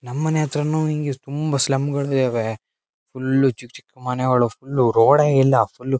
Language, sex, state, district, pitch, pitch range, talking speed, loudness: Kannada, male, Karnataka, Shimoga, 135 Hz, 125-145 Hz, 150 wpm, -20 LUFS